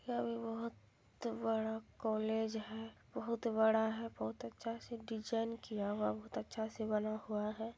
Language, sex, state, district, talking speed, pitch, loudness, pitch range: Hindi, female, Bihar, Supaul, 170 wpm, 220 Hz, -40 LUFS, 215-230 Hz